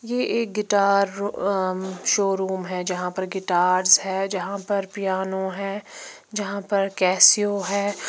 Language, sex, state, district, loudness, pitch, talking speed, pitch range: Hindi, female, Bihar, Patna, -22 LUFS, 195 Hz, 135 wpm, 190-200 Hz